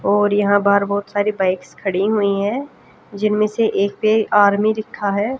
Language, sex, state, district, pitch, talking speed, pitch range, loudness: Hindi, female, Haryana, Jhajjar, 205 Hz, 180 wpm, 200-215 Hz, -18 LUFS